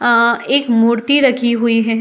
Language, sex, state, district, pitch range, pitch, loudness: Hindi, female, Uttar Pradesh, Jalaun, 230-250 Hz, 235 Hz, -13 LUFS